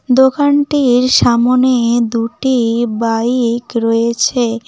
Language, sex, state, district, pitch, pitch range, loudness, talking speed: Bengali, female, West Bengal, Cooch Behar, 240 Hz, 230-255 Hz, -13 LUFS, 65 wpm